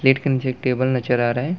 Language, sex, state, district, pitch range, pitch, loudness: Hindi, male, Chhattisgarh, Balrampur, 125-135 Hz, 130 Hz, -20 LUFS